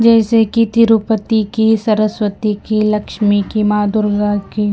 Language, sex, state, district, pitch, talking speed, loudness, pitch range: Hindi, female, Himachal Pradesh, Shimla, 215 Hz, 140 wpm, -14 LUFS, 210-220 Hz